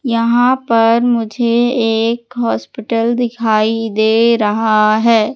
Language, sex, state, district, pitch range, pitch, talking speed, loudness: Hindi, female, Madhya Pradesh, Katni, 220-235 Hz, 230 Hz, 100 wpm, -14 LUFS